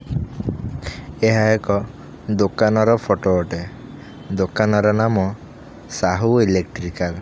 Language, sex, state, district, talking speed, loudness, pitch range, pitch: Odia, male, Odisha, Khordha, 85 wpm, -19 LUFS, 90-110 Hz, 105 Hz